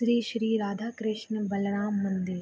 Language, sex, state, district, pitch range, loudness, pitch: Hindi, female, Bihar, Begusarai, 200-225 Hz, -30 LUFS, 215 Hz